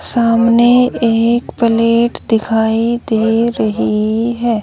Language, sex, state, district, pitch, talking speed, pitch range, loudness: Hindi, female, Haryana, Rohtak, 230 Hz, 90 wpm, 225-235 Hz, -13 LUFS